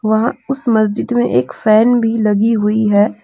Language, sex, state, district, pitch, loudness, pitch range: Hindi, female, Jharkhand, Deoghar, 215 Hz, -14 LUFS, 210-225 Hz